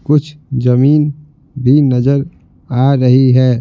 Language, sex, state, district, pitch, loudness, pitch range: Hindi, male, Bihar, Patna, 140 Hz, -12 LUFS, 130-150 Hz